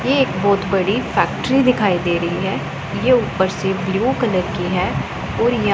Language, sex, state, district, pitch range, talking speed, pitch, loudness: Hindi, female, Punjab, Pathankot, 185-240 Hz, 190 wpm, 195 Hz, -18 LUFS